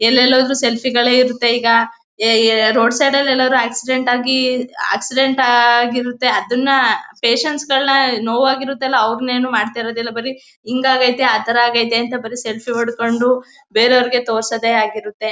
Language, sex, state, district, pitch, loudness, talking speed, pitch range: Kannada, female, Karnataka, Mysore, 245 Hz, -15 LUFS, 145 wpm, 230-260 Hz